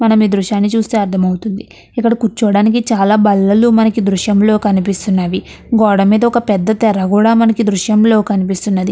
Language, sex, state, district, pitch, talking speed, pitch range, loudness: Telugu, female, Andhra Pradesh, Chittoor, 210 Hz, 150 wpm, 200-225 Hz, -13 LUFS